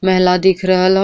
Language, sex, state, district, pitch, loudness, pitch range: Bhojpuri, female, Uttar Pradesh, Deoria, 185 Hz, -13 LUFS, 185-190 Hz